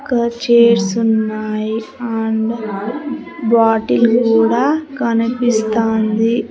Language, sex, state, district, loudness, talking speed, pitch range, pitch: Telugu, female, Andhra Pradesh, Sri Satya Sai, -15 LUFS, 65 wpm, 220-240 Hz, 230 Hz